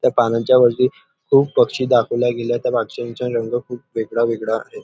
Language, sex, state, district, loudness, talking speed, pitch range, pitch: Marathi, male, Maharashtra, Nagpur, -18 LUFS, 185 wpm, 115-125 Hz, 120 Hz